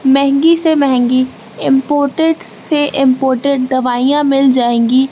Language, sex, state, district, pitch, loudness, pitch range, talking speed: Hindi, female, Madhya Pradesh, Katni, 275 Hz, -13 LUFS, 255-290 Hz, 105 wpm